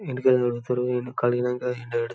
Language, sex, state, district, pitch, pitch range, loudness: Telugu, male, Telangana, Karimnagar, 125 Hz, 120-125 Hz, -25 LUFS